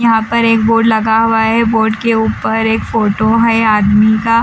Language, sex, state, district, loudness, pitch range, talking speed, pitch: Hindi, female, Bihar, Patna, -12 LUFS, 220-230 Hz, 215 wpm, 225 Hz